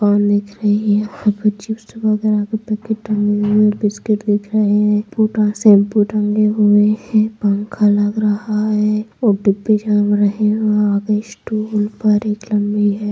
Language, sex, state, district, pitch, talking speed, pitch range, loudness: Hindi, female, Bihar, Saharsa, 210 Hz, 105 wpm, 205-215 Hz, -16 LUFS